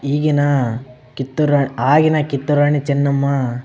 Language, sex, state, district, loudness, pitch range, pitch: Kannada, male, Karnataka, Bellary, -16 LUFS, 135-145 Hz, 140 Hz